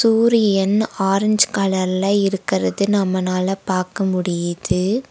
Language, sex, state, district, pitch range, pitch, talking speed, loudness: Tamil, female, Tamil Nadu, Nilgiris, 185-205 Hz, 195 Hz, 80 wpm, -18 LUFS